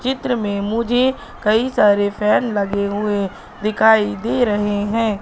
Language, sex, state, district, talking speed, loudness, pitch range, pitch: Hindi, female, Madhya Pradesh, Katni, 150 wpm, -18 LUFS, 205-235 Hz, 215 Hz